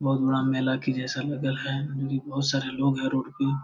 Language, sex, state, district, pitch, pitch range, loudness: Hindi, male, Bihar, Jamui, 135 Hz, 130-140 Hz, -27 LUFS